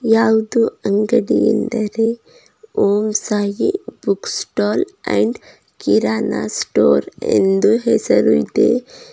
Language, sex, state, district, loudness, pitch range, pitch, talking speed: Kannada, female, Karnataka, Bidar, -17 LUFS, 205-240 Hz, 225 Hz, 85 wpm